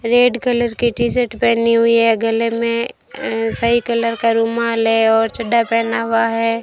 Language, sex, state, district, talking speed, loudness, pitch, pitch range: Hindi, female, Rajasthan, Bikaner, 190 wpm, -16 LUFS, 230 Hz, 230-235 Hz